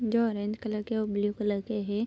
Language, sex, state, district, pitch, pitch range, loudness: Hindi, female, Bihar, Darbhanga, 210 Hz, 205-220 Hz, -30 LUFS